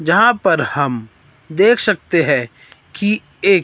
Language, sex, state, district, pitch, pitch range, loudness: Hindi, male, Himachal Pradesh, Shimla, 165 Hz, 135-205 Hz, -15 LUFS